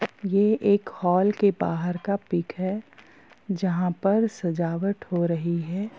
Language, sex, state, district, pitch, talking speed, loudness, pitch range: Hindi, female, Bihar, Gopalganj, 195 Hz, 140 wpm, -25 LUFS, 175-205 Hz